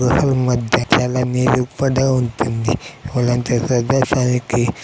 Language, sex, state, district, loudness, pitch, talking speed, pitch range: Telugu, male, Andhra Pradesh, Chittoor, -17 LUFS, 125 Hz, 85 wpm, 120-130 Hz